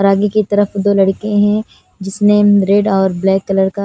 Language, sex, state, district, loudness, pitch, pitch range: Hindi, female, Punjab, Kapurthala, -13 LUFS, 200 Hz, 195-205 Hz